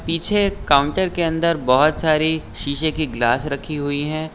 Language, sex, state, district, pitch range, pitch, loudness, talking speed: Hindi, male, Uttar Pradesh, Lucknow, 140-165 Hz, 155 Hz, -19 LUFS, 180 wpm